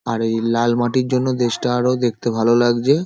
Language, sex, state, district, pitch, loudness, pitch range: Bengali, male, West Bengal, Paschim Medinipur, 120 Hz, -18 LUFS, 115-125 Hz